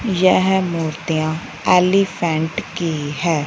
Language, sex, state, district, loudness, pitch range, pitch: Hindi, female, Punjab, Fazilka, -18 LUFS, 160-185 Hz, 170 Hz